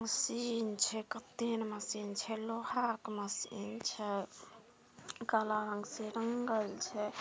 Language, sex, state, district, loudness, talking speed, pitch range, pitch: Maithili, female, Bihar, Samastipur, -38 LUFS, 110 wpm, 210-230 Hz, 220 Hz